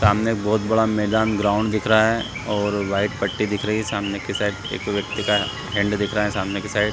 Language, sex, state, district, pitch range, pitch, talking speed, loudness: Hindi, male, Chhattisgarh, Raigarh, 100-110 Hz, 105 Hz, 245 wpm, -21 LUFS